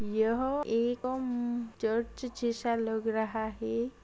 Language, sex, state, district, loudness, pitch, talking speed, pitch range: Hindi, female, Chhattisgarh, Raigarh, -32 LUFS, 235 Hz, 120 wpm, 225-245 Hz